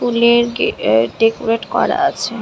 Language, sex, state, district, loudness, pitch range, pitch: Bengali, female, West Bengal, Dakshin Dinajpur, -15 LUFS, 225-235 Hz, 230 Hz